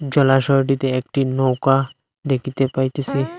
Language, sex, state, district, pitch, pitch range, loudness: Bengali, male, Assam, Hailakandi, 135 Hz, 130-140 Hz, -19 LUFS